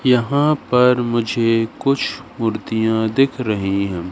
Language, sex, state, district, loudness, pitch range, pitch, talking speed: Hindi, male, Madhya Pradesh, Katni, -18 LUFS, 110-130 Hz, 115 Hz, 115 wpm